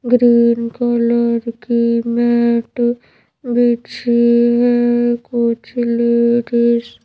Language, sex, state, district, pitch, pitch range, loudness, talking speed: Hindi, female, Madhya Pradesh, Bhopal, 235 Hz, 235-240 Hz, -15 LUFS, 70 wpm